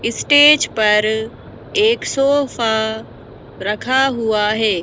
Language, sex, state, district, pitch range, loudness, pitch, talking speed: Hindi, female, Madhya Pradesh, Bhopal, 210-275 Hz, -15 LUFS, 220 Hz, 85 wpm